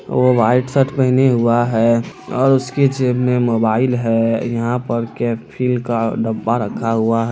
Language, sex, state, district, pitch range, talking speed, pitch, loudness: Hindi, male, Bihar, Araria, 115-125 Hz, 165 wpm, 120 Hz, -17 LUFS